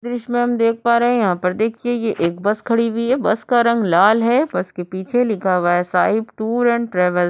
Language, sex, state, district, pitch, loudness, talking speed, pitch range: Hindi, female, Uttar Pradesh, Budaun, 230 Hz, -18 LUFS, 260 wpm, 185-240 Hz